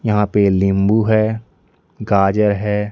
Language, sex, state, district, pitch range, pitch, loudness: Hindi, male, Odisha, Nuapada, 95-110 Hz, 105 Hz, -16 LUFS